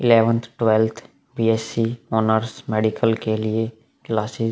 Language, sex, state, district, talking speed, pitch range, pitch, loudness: Hindi, male, Bihar, Vaishali, 120 wpm, 110-115 Hz, 115 Hz, -21 LUFS